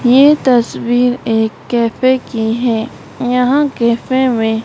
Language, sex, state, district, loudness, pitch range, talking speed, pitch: Hindi, female, Madhya Pradesh, Dhar, -14 LUFS, 230-255 Hz, 115 wpm, 245 Hz